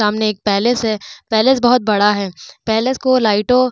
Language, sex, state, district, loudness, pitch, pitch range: Hindi, female, Bihar, Vaishali, -15 LUFS, 220 Hz, 210-250 Hz